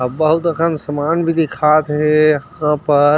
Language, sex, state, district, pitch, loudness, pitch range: Chhattisgarhi, male, Chhattisgarh, Rajnandgaon, 155 Hz, -15 LUFS, 150-160 Hz